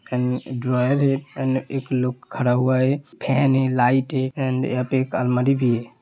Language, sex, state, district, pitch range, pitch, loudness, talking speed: Hindi, male, Uttar Pradesh, Hamirpur, 125-135 Hz, 130 Hz, -21 LUFS, 200 wpm